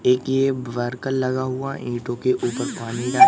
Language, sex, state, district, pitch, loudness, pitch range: Hindi, male, Madhya Pradesh, Katni, 125 Hz, -24 LUFS, 120-130 Hz